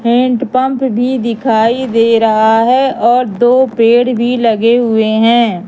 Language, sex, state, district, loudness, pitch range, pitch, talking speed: Hindi, female, Madhya Pradesh, Katni, -11 LUFS, 225-250 Hz, 235 Hz, 150 wpm